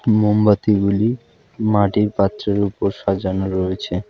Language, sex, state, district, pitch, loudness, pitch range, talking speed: Bengali, male, West Bengal, Alipurduar, 100 Hz, -18 LUFS, 100-105 Hz, 90 wpm